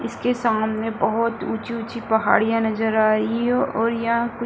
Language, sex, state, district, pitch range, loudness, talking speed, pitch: Hindi, female, Bihar, Kishanganj, 220-235 Hz, -21 LUFS, 175 wpm, 225 Hz